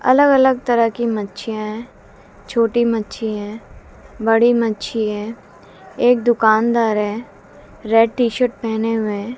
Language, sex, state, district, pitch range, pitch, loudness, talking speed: Hindi, female, Haryana, Jhajjar, 215-240 Hz, 225 Hz, -17 LUFS, 130 wpm